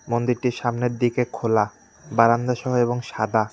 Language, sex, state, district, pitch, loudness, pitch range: Bengali, male, West Bengal, Cooch Behar, 120 Hz, -22 LUFS, 115-125 Hz